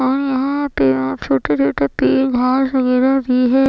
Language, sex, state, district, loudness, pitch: Hindi, female, Bihar, Katihar, -16 LUFS, 255 Hz